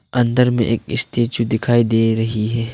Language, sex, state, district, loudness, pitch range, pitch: Hindi, male, Arunachal Pradesh, Longding, -17 LUFS, 115-120 Hz, 115 Hz